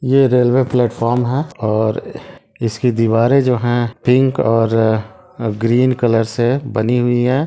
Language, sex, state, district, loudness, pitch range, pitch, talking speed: Hindi, male, Bihar, Sitamarhi, -16 LUFS, 115-130 Hz, 120 Hz, 135 wpm